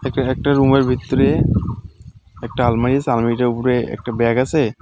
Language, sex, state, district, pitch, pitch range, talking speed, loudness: Bengali, male, West Bengal, Alipurduar, 125 Hz, 115-135 Hz, 150 wpm, -17 LUFS